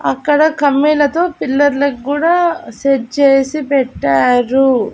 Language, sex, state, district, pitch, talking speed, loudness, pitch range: Telugu, female, Andhra Pradesh, Annamaya, 280 Hz, 75 wpm, -13 LUFS, 260-300 Hz